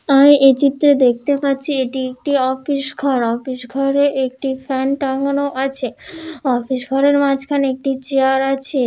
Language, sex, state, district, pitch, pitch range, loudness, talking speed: Bengali, female, West Bengal, Dakshin Dinajpur, 270 Hz, 260-280 Hz, -17 LUFS, 135 wpm